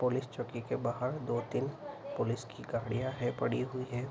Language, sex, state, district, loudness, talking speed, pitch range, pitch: Hindi, male, Bihar, Araria, -36 LUFS, 175 wpm, 120-130 Hz, 125 Hz